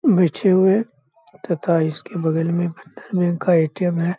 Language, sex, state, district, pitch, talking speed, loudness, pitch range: Hindi, male, Bihar, Saharsa, 175 Hz, 155 wpm, -20 LUFS, 165-185 Hz